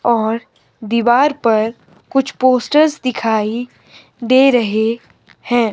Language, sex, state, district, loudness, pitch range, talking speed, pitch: Hindi, male, Himachal Pradesh, Shimla, -15 LUFS, 225-255 Hz, 95 wpm, 235 Hz